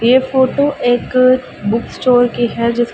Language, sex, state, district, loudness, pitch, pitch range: Hindi, female, Uttar Pradesh, Ghazipur, -14 LUFS, 245 Hz, 240-260 Hz